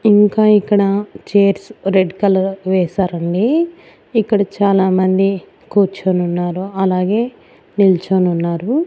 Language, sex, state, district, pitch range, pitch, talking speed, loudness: Telugu, female, Andhra Pradesh, Annamaya, 185-210 Hz, 195 Hz, 95 wpm, -15 LUFS